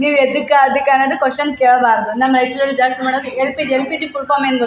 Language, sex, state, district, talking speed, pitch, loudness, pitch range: Kannada, female, Karnataka, Raichur, 220 wpm, 270 Hz, -14 LUFS, 255-280 Hz